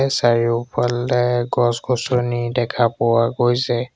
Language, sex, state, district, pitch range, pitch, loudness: Assamese, male, Assam, Sonitpur, 120-125 Hz, 120 Hz, -19 LUFS